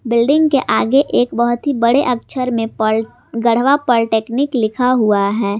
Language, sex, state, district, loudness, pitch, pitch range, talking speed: Hindi, female, Jharkhand, Garhwa, -15 LUFS, 240 Hz, 225-265 Hz, 160 wpm